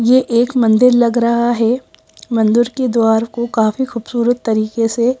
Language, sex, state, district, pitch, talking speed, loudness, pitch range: Hindi, female, Madhya Pradesh, Bhopal, 235 Hz, 160 wpm, -15 LUFS, 225-245 Hz